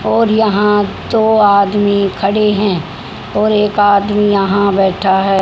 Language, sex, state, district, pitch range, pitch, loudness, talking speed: Hindi, female, Haryana, Rohtak, 195-210 Hz, 205 Hz, -12 LUFS, 135 wpm